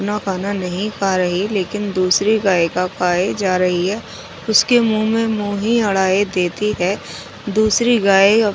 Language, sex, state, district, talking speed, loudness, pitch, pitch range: Hindi, female, Odisha, Sambalpur, 160 wpm, -17 LUFS, 200 Hz, 185-215 Hz